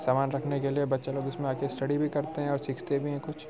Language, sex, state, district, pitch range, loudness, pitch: Hindi, male, Bihar, Muzaffarpur, 135-145 Hz, -30 LUFS, 140 Hz